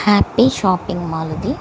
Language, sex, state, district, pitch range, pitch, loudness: Telugu, female, Andhra Pradesh, Srikakulam, 170-230 Hz, 185 Hz, -17 LUFS